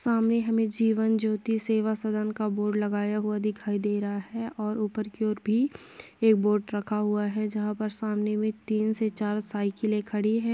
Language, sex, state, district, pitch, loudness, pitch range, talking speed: Hindi, female, Bihar, Vaishali, 215 Hz, -28 LUFS, 210-220 Hz, 195 wpm